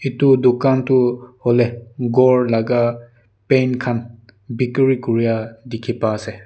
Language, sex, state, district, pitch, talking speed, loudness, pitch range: Nagamese, male, Nagaland, Dimapur, 120 Hz, 130 wpm, -17 LUFS, 115-130 Hz